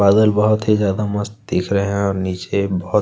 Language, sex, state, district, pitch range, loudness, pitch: Hindi, male, Chhattisgarh, Kabirdham, 100-105 Hz, -18 LUFS, 100 Hz